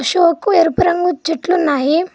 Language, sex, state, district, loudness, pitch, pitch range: Telugu, female, Telangana, Mahabubabad, -15 LUFS, 345 Hz, 325-360 Hz